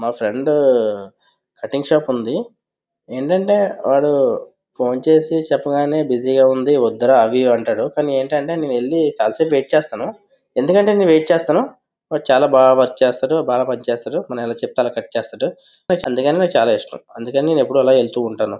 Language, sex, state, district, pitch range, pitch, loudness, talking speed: Telugu, male, Andhra Pradesh, Visakhapatnam, 125-160 Hz, 140 Hz, -17 LUFS, 150 wpm